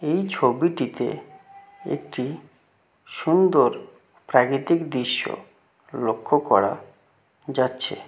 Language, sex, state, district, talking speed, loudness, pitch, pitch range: Bengali, male, West Bengal, Jalpaiguri, 65 wpm, -23 LUFS, 160 Hz, 130-185 Hz